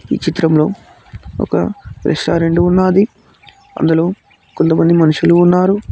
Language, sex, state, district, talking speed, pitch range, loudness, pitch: Telugu, male, Telangana, Mahabubabad, 90 wpm, 160-185 Hz, -13 LUFS, 170 Hz